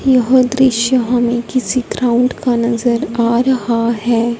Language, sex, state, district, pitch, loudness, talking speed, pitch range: Hindi, female, Punjab, Fazilka, 245 Hz, -14 LUFS, 135 wpm, 235-255 Hz